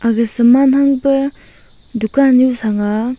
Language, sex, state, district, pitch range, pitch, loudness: Wancho, female, Arunachal Pradesh, Longding, 230-275 Hz, 250 Hz, -13 LUFS